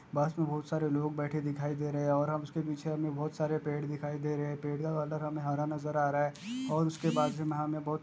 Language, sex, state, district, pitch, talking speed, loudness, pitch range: Hindi, male, Goa, North and South Goa, 150 Hz, 285 wpm, -34 LUFS, 145-155 Hz